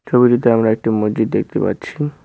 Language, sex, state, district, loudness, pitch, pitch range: Bengali, male, West Bengal, Cooch Behar, -16 LUFS, 115 Hz, 110-125 Hz